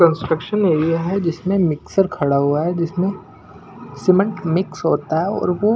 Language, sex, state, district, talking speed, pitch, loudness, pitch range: Hindi, male, Punjab, Pathankot, 145 wpm, 170 Hz, -19 LUFS, 160-190 Hz